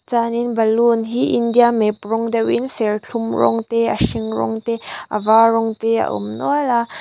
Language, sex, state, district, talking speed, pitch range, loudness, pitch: Mizo, female, Mizoram, Aizawl, 190 wpm, 215-235 Hz, -18 LUFS, 225 Hz